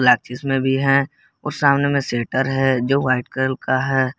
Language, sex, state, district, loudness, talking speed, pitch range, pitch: Hindi, male, Jharkhand, Garhwa, -19 LUFS, 200 wpm, 130-140 Hz, 135 Hz